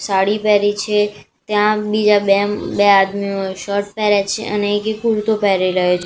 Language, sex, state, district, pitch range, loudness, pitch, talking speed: Gujarati, female, Gujarat, Gandhinagar, 200-210 Hz, -16 LUFS, 205 Hz, 160 wpm